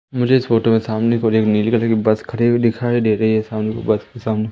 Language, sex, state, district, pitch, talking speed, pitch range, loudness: Hindi, male, Madhya Pradesh, Umaria, 110 Hz, 290 wpm, 110-120 Hz, -17 LUFS